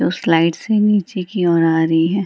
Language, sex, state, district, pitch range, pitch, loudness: Hindi, female, Bihar, Gaya, 165-205 Hz, 175 Hz, -16 LUFS